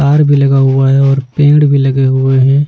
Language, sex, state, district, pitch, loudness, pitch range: Hindi, male, Bihar, Kaimur, 135 Hz, -9 LUFS, 135-145 Hz